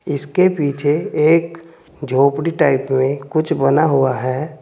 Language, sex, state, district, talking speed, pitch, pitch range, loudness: Hindi, male, Uttar Pradesh, Saharanpur, 130 wpm, 145 Hz, 135-160 Hz, -16 LUFS